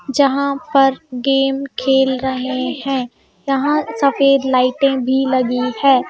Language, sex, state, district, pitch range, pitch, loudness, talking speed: Hindi, female, Madhya Pradesh, Bhopal, 260-275 Hz, 270 Hz, -16 LUFS, 120 wpm